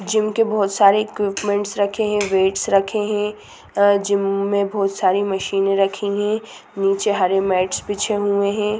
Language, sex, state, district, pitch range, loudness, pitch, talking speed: Hindi, female, Bihar, Gopalganj, 195-210 Hz, -19 LUFS, 200 Hz, 165 wpm